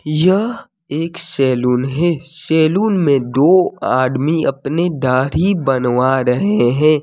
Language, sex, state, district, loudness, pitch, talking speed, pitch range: Hindi, male, Jharkhand, Deoghar, -15 LUFS, 150 Hz, 110 wpm, 130-170 Hz